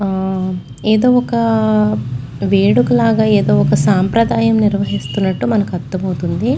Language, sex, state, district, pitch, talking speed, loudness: Telugu, female, Andhra Pradesh, Chittoor, 185 Hz, 90 wpm, -15 LUFS